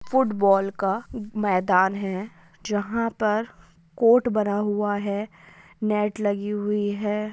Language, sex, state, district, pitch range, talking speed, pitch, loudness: Hindi, female, Andhra Pradesh, Chittoor, 200-215 Hz, 90 wpm, 210 Hz, -24 LUFS